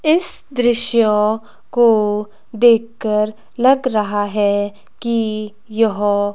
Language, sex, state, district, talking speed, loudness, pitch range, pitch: Hindi, female, Himachal Pradesh, Shimla, 85 wpm, -16 LUFS, 210-235 Hz, 220 Hz